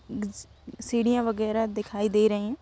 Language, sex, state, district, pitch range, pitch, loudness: Hindi, female, Jharkhand, Sahebganj, 210-235 Hz, 220 Hz, -26 LUFS